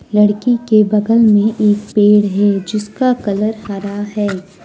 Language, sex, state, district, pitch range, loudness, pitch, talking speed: Hindi, female, Jharkhand, Deoghar, 205-215 Hz, -14 LUFS, 210 Hz, 140 wpm